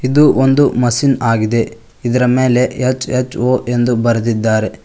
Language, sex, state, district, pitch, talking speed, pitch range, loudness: Kannada, male, Karnataka, Koppal, 125 Hz, 110 wpm, 115-130 Hz, -14 LUFS